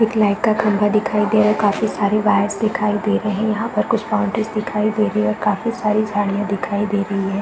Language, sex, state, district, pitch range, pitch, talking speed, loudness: Hindi, female, Bihar, East Champaran, 205-215 Hz, 210 Hz, 245 wpm, -18 LUFS